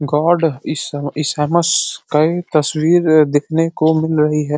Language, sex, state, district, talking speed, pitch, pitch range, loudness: Hindi, male, Uttar Pradesh, Deoria, 130 wpm, 155 Hz, 150-165 Hz, -16 LUFS